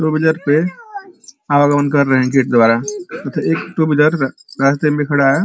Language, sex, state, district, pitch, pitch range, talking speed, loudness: Hindi, male, Uttar Pradesh, Ghazipur, 145 Hz, 135-160 Hz, 100 wpm, -15 LUFS